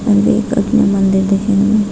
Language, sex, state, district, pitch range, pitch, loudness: Hindi, female, Uttarakhand, Tehri Garhwal, 195-215 Hz, 200 Hz, -13 LUFS